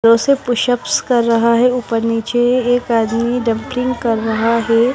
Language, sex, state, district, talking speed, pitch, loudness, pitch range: Hindi, female, Bihar, West Champaran, 160 wpm, 235 Hz, -15 LUFS, 230-245 Hz